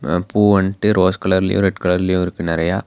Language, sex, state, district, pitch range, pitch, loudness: Tamil, male, Tamil Nadu, Nilgiris, 90-100 Hz, 95 Hz, -17 LUFS